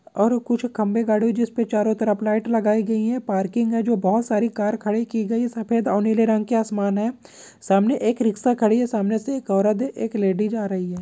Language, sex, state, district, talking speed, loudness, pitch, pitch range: Hindi, male, Jharkhand, Sahebganj, 235 wpm, -21 LUFS, 220 Hz, 210-235 Hz